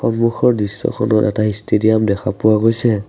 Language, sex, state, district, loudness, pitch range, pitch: Assamese, male, Assam, Sonitpur, -16 LUFS, 105-115 Hz, 110 Hz